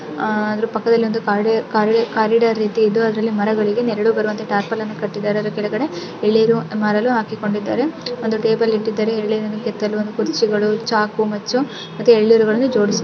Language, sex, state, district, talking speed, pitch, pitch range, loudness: Kannada, female, Karnataka, Mysore, 145 wpm, 220 Hz, 210-225 Hz, -18 LUFS